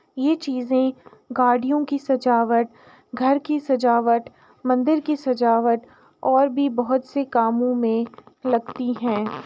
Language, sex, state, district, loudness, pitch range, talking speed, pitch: Hindi, female, Uttar Pradesh, Jalaun, -21 LUFS, 235-270 Hz, 120 wpm, 250 Hz